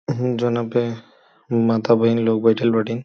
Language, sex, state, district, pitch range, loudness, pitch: Bhojpuri, male, Uttar Pradesh, Gorakhpur, 115-120 Hz, -19 LUFS, 115 Hz